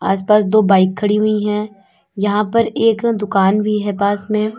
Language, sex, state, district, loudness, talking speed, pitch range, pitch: Hindi, female, Uttar Pradesh, Lalitpur, -15 LUFS, 185 wpm, 200-215 Hz, 210 Hz